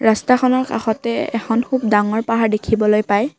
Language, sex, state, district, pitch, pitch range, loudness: Assamese, female, Assam, Kamrup Metropolitan, 225 Hz, 215-250 Hz, -17 LUFS